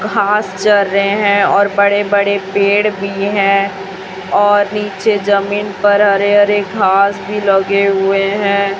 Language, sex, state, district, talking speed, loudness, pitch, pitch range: Hindi, female, Chhattisgarh, Raipur, 145 wpm, -13 LUFS, 200 Hz, 195-205 Hz